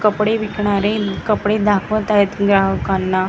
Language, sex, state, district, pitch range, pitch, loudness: Marathi, female, Maharashtra, Gondia, 195-215 Hz, 205 Hz, -17 LUFS